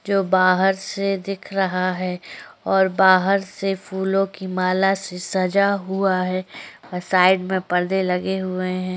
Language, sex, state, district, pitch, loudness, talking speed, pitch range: Hindi, female, Maharashtra, Chandrapur, 190 Hz, -20 LUFS, 145 wpm, 185-195 Hz